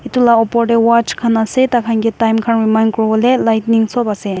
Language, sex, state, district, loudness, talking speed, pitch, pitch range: Nagamese, female, Nagaland, Kohima, -13 LUFS, 230 wpm, 230 Hz, 220-235 Hz